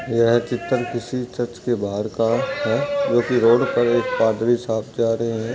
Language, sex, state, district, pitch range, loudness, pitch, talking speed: Hindi, male, Bihar, Darbhanga, 115-120 Hz, -20 LUFS, 120 Hz, 185 wpm